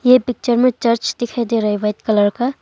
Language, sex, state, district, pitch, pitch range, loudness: Hindi, female, Arunachal Pradesh, Longding, 235 Hz, 215-250 Hz, -17 LUFS